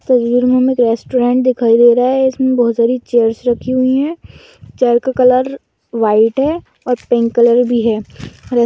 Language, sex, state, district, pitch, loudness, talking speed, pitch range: Bhojpuri, female, Uttar Pradesh, Gorakhpur, 245 Hz, -13 LUFS, 185 wpm, 235-255 Hz